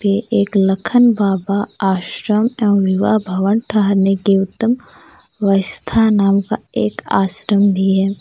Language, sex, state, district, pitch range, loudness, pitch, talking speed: Hindi, female, Jharkhand, Deoghar, 195-215 Hz, -16 LUFS, 200 Hz, 130 wpm